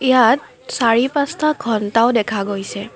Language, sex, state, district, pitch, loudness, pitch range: Assamese, female, Assam, Kamrup Metropolitan, 235 Hz, -17 LUFS, 220-270 Hz